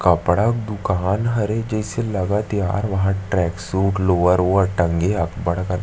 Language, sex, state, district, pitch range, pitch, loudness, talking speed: Chhattisgarhi, male, Chhattisgarh, Sarguja, 90-105 Hz, 95 Hz, -20 LUFS, 175 wpm